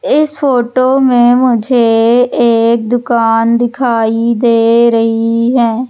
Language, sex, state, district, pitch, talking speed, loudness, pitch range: Hindi, female, Madhya Pradesh, Umaria, 235 Hz, 100 wpm, -10 LUFS, 230-250 Hz